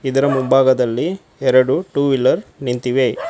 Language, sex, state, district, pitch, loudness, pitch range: Kannada, male, Karnataka, Koppal, 130 Hz, -17 LUFS, 125-140 Hz